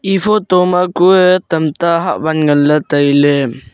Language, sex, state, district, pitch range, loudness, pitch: Wancho, male, Arunachal Pradesh, Longding, 145-180 Hz, -12 LUFS, 165 Hz